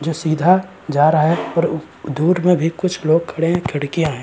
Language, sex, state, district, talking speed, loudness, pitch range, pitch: Hindi, male, Uttarakhand, Tehri Garhwal, 215 wpm, -17 LUFS, 155-175 Hz, 165 Hz